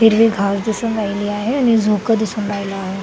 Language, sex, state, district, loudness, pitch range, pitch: Marathi, female, Maharashtra, Sindhudurg, -17 LUFS, 200-225 Hz, 210 Hz